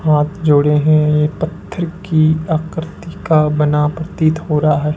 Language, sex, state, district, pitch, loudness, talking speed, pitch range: Hindi, male, Rajasthan, Bikaner, 155 Hz, -15 LUFS, 155 wpm, 150-160 Hz